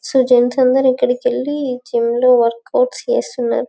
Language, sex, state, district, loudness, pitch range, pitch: Telugu, female, Telangana, Karimnagar, -15 LUFS, 245-265 Hz, 250 Hz